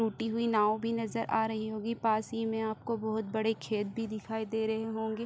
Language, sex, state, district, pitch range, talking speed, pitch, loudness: Hindi, female, Bihar, Supaul, 220-225 Hz, 230 wpm, 220 Hz, -33 LUFS